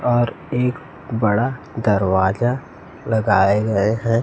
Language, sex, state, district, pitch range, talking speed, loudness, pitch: Hindi, male, Chhattisgarh, Raipur, 105-125 Hz, 100 wpm, -19 LUFS, 115 Hz